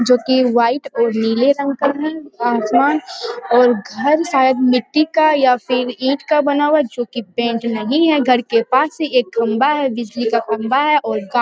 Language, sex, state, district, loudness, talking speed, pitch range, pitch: Hindi, female, Bihar, Jamui, -16 LUFS, 185 wpm, 235-290 Hz, 255 Hz